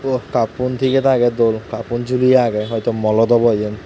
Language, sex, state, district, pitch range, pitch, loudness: Chakma, male, Tripura, Dhalai, 110-125 Hz, 120 Hz, -16 LUFS